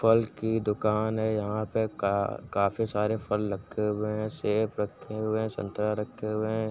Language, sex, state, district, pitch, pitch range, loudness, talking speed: Hindi, male, Uttar Pradesh, Etah, 105 Hz, 105-110 Hz, -29 LUFS, 185 wpm